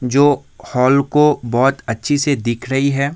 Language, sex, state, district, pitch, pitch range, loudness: Hindi, male, Bihar, Darbhanga, 135 Hz, 125-145 Hz, -16 LUFS